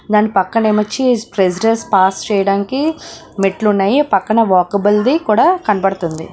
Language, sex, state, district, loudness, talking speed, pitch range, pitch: Telugu, female, Telangana, Nalgonda, -14 LUFS, 115 wpm, 195-230 Hz, 210 Hz